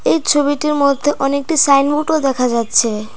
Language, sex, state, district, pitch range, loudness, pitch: Bengali, female, Tripura, Dhalai, 265-295 Hz, -14 LUFS, 280 Hz